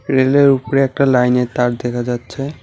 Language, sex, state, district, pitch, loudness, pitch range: Bengali, male, West Bengal, Alipurduar, 130 Hz, -15 LUFS, 125-135 Hz